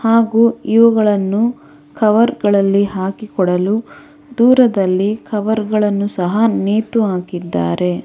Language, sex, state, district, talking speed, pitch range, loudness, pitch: Kannada, female, Karnataka, Bangalore, 80 wpm, 190-225 Hz, -15 LUFS, 210 Hz